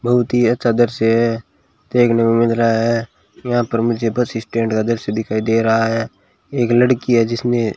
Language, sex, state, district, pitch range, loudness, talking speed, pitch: Hindi, male, Rajasthan, Bikaner, 115-120 Hz, -17 LUFS, 200 wpm, 115 Hz